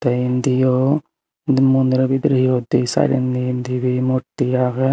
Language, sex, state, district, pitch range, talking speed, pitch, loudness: Chakma, male, Tripura, Unakoti, 125-135 Hz, 120 wpm, 130 Hz, -18 LUFS